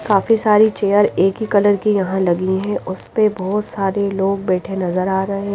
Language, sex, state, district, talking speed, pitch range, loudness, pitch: Hindi, female, Himachal Pradesh, Shimla, 195 wpm, 190-210 Hz, -17 LUFS, 200 Hz